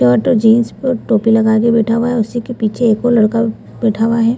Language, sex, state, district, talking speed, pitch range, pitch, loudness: Hindi, female, Bihar, Purnia, 260 wpm, 220-240 Hz, 230 Hz, -14 LUFS